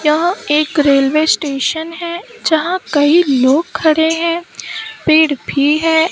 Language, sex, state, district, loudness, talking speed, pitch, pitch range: Hindi, female, Maharashtra, Mumbai Suburban, -14 LUFS, 125 wpm, 315 Hz, 295-340 Hz